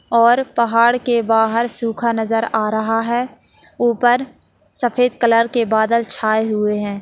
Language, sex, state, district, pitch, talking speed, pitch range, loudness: Hindi, female, Uttarakhand, Tehri Garhwal, 230 Hz, 145 wpm, 225-240 Hz, -16 LUFS